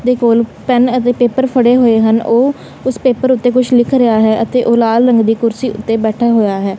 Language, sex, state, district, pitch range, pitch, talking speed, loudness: Punjabi, female, Punjab, Kapurthala, 225-250 Hz, 240 Hz, 230 wpm, -12 LUFS